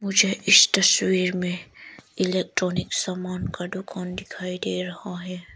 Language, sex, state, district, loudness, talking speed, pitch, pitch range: Hindi, female, Arunachal Pradesh, Lower Dibang Valley, -22 LUFS, 130 wpm, 185 Hz, 180-185 Hz